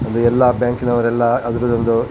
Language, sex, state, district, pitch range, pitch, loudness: Kannada, male, Karnataka, Dakshina Kannada, 115-120 Hz, 120 Hz, -16 LUFS